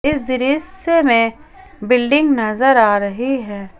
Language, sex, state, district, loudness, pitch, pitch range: Hindi, female, Jharkhand, Ranchi, -15 LUFS, 260 Hz, 225-295 Hz